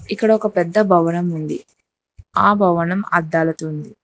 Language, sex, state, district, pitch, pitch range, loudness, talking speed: Telugu, female, Telangana, Hyderabad, 175 Hz, 165-205 Hz, -18 LUFS, 135 wpm